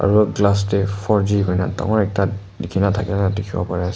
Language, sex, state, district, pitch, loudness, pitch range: Nagamese, male, Nagaland, Kohima, 100 Hz, -19 LUFS, 95-105 Hz